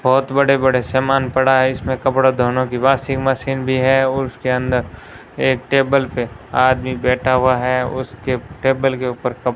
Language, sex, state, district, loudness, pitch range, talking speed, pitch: Hindi, male, Rajasthan, Bikaner, -17 LUFS, 125-135 Hz, 190 wpm, 130 Hz